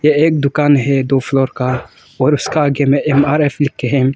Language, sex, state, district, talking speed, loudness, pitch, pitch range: Hindi, male, Arunachal Pradesh, Longding, 190 wpm, -14 LUFS, 140 Hz, 135-150 Hz